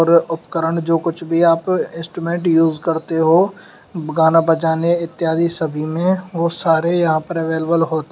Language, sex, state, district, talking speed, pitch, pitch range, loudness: Hindi, male, Uttar Pradesh, Shamli, 150 wpm, 165 Hz, 160-170 Hz, -17 LUFS